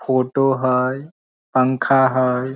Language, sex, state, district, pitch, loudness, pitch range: Maithili, male, Bihar, Samastipur, 130 Hz, -18 LUFS, 130-135 Hz